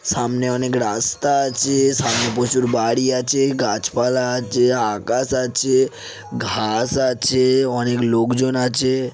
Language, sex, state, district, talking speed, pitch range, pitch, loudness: Bengali, male, West Bengal, Jhargram, 110 wpm, 120-130 Hz, 125 Hz, -18 LUFS